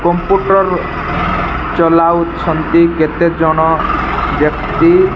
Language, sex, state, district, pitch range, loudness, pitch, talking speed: Odia, male, Odisha, Malkangiri, 165-185 Hz, -13 LUFS, 170 Hz, 70 wpm